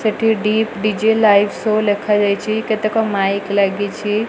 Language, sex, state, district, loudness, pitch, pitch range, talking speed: Odia, female, Odisha, Malkangiri, -16 LUFS, 215 Hz, 205-220 Hz, 125 wpm